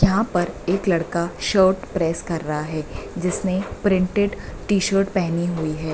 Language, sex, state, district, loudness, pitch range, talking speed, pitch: Hindi, female, Bihar, Bhagalpur, -22 LUFS, 170-195 Hz, 150 wpm, 180 Hz